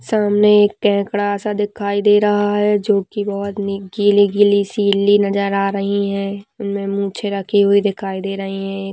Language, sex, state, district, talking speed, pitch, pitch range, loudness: Hindi, female, Rajasthan, Nagaur, 180 wpm, 200 Hz, 200-205 Hz, -17 LUFS